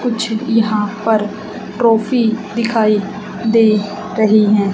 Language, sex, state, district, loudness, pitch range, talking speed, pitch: Hindi, female, Haryana, Charkhi Dadri, -15 LUFS, 210-225 Hz, 100 wpm, 215 Hz